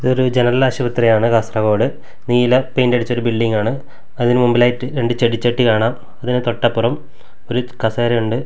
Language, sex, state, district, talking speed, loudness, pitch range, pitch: Malayalam, male, Kerala, Kasaragod, 140 wpm, -16 LUFS, 115-125 Hz, 120 Hz